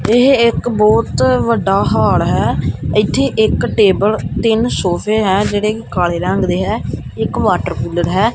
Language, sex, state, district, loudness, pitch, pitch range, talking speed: Punjabi, male, Punjab, Kapurthala, -14 LUFS, 205 Hz, 180-220 Hz, 150 wpm